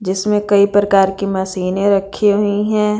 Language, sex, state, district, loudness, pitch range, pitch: Hindi, female, Bihar, Patna, -15 LUFS, 195-205 Hz, 200 Hz